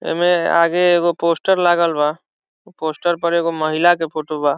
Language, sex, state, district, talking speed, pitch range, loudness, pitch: Bhojpuri, male, Bihar, Saran, 170 wpm, 160-175 Hz, -17 LUFS, 170 Hz